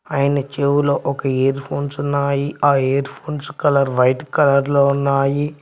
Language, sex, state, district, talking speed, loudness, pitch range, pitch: Telugu, male, Telangana, Mahabubabad, 150 wpm, -18 LUFS, 140-145 Hz, 140 Hz